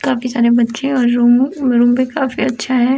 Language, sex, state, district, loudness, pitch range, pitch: Hindi, female, Bihar, Sitamarhi, -14 LUFS, 240-260 Hz, 250 Hz